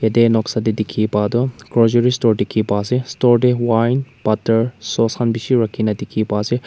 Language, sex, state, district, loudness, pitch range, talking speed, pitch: Nagamese, male, Nagaland, Kohima, -17 LUFS, 110-120 Hz, 205 wpm, 115 Hz